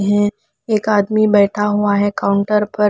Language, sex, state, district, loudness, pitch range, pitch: Hindi, female, Punjab, Pathankot, -16 LUFS, 205-210 Hz, 205 Hz